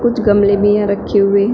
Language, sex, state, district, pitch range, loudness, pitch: Hindi, female, Uttar Pradesh, Shamli, 200-210 Hz, -13 LUFS, 205 Hz